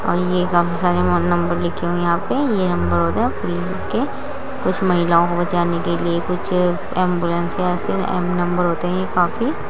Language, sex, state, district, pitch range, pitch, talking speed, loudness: Hindi, female, Uttar Pradesh, Muzaffarnagar, 170-180 Hz, 175 Hz, 190 wpm, -19 LUFS